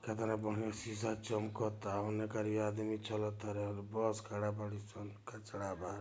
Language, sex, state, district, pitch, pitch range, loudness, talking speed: Bhojpuri, male, Bihar, Gopalganj, 105 Hz, 105-110 Hz, -40 LUFS, 140 wpm